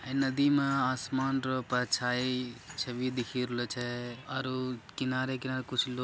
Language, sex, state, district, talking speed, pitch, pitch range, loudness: Angika, male, Bihar, Bhagalpur, 130 wpm, 130 Hz, 125-130 Hz, -32 LUFS